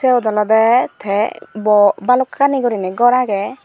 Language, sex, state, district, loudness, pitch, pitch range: Chakma, female, Tripura, Unakoti, -15 LUFS, 220 Hz, 205-250 Hz